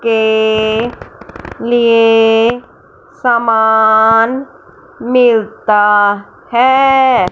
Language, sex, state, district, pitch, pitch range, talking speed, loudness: Hindi, female, Punjab, Fazilka, 225 Hz, 220-240 Hz, 40 wpm, -11 LUFS